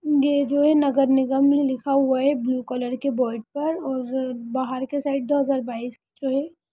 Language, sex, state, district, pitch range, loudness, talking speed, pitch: Hindi, female, Bihar, Sitamarhi, 255-285 Hz, -23 LUFS, 205 wpm, 270 Hz